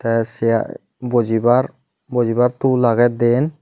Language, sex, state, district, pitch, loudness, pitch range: Chakma, male, Tripura, Unakoti, 120 Hz, -17 LUFS, 115-125 Hz